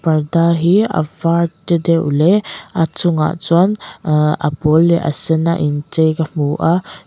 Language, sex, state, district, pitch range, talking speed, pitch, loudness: Mizo, female, Mizoram, Aizawl, 155-170 Hz, 180 wpm, 165 Hz, -15 LUFS